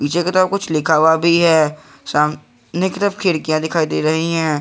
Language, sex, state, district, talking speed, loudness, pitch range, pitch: Hindi, male, Jharkhand, Garhwa, 180 wpm, -16 LUFS, 155-175 Hz, 160 Hz